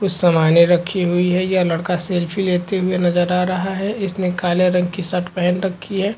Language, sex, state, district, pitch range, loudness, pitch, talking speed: Hindi, male, Chhattisgarh, Bastar, 175-190 Hz, -18 LUFS, 180 Hz, 205 wpm